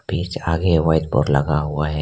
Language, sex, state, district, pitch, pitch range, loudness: Hindi, male, Arunachal Pradesh, Lower Dibang Valley, 75 Hz, 75-80 Hz, -19 LUFS